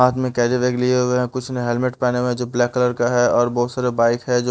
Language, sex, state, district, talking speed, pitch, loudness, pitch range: Hindi, male, Bihar, Kaimur, 320 wpm, 125 Hz, -19 LUFS, 120-125 Hz